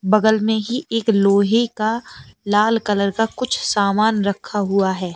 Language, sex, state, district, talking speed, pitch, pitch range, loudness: Hindi, female, Uttar Pradesh, Lalitpur, 165 wpm, 215 Hz, 200-225 Hz, -18 LUFS